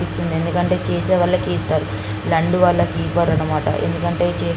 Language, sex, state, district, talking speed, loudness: Telugu, female, Andhra Pradesh, Guntur, 130 wpm, -19 LUFS